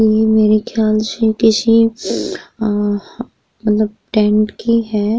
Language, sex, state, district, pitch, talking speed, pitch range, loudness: Hindi, female, Uttar Pradesh, Muzaffarnagar, 220 Hz, 115 wpm, 215-225 Hz, -15 LUFS